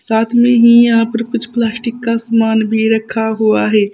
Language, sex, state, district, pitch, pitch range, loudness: Hindi, female, Uttar Pradesh, Saharanpur, 230 Hz, 220-235 Hz, -13 LUFS